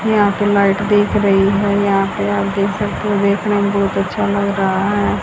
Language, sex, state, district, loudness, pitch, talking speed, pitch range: Hindi, female, Haryana, Jhajjar, -16 LUFS, 200 Hz, 220 wpm, 195-205 Hz